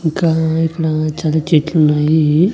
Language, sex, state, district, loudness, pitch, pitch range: Telugu, male, Andhra Pradesh, Annamaya, -15 LUFS, 160 Hz, 155-165 Hz